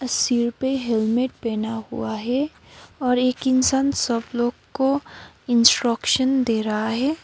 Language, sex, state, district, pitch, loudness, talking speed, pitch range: Hindi, female, West Bengal, Darjeeling, 245 Hz, -21 LUFS, 125 wpm, 230-265 Hz